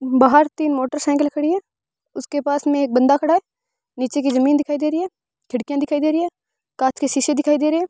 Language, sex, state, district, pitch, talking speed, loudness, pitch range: Hindi, female, Rajasthan, Bikaner, 295 Hz, 235 wpm, -19 LUFS, 275-310 Hz